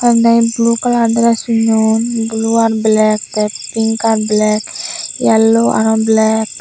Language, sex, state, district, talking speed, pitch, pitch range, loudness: Chakma, female, Tripura, Unakoti, 155 wpm, 225 Hz, 220-230 Hz, -13 LUFS